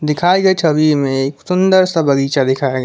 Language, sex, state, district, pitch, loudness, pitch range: Hindi, male, Jharkhand, Palamu, 150 Hz, -14 LUFS, 135-180 Hz